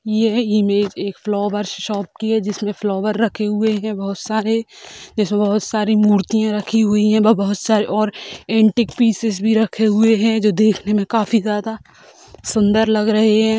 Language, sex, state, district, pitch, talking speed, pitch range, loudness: Hindi, female, Bihar, Sitamarhi, 215 Hz, 170 wpm, 210-220 Hz, -17 LUFS